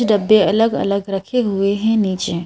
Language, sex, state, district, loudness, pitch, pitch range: Hindi, female, Madhya Pradesh, Bhopal, -16 LUFS, 200 Hz, 195-220 Hz